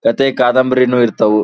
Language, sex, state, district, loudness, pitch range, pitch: Kannada, male, Karnataka, Dharwad, -13 LUFS, 115-130 Hz, 125 Hz